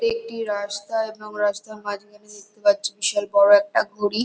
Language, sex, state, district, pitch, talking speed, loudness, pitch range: Bengali, female, West Bengal, North 24 Parganas, 210 Hz, 170 wpm, -22 LUFS, 205-225 Hz